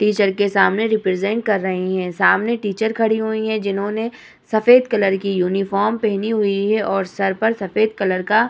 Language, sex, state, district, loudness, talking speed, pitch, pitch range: Hindi, female, Uttar Pradesh, Muzaffarnagar, -18 LUFS, 190 wpm, 210 Hz, 195-220 Hz